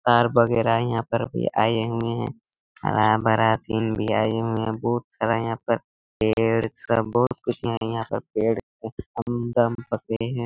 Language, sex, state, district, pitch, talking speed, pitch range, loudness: Hindi, male, Chhattisgarh, Raigarh, 115 Hz, 180 wpm, 110-120 Hz, -24 LUFS